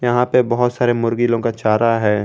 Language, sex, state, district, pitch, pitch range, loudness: Hindi, male, Jharkhand, Garhwa, 120 Hz, 115-120 Hz, -17 LUFS